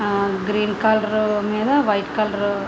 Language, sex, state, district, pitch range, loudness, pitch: Telugu, female, Andhra Pradesh, Visakhapatnam, 205-215 Hz, -20 LUFS, 210 Hz